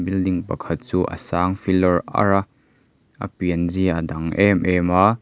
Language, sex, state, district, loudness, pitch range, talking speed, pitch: Mizo, male, Mizoram, Aizawl, -20 LUFS, 90-95 Hz, 170 wpm, 90 Hz